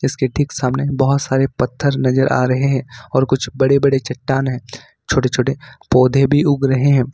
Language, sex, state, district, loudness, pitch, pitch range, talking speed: Hindi, male, Jharkhand, Ranchi, -16 LUFS, 135 Hz, 130-140 Hz, 195 wpm